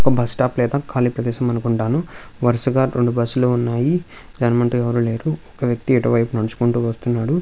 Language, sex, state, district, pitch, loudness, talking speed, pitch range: Telugu, male, Andhra Pradesh, Visakhapatnam, 120 Hz, -19 LUFS, 185 wpm, 120-130 Hz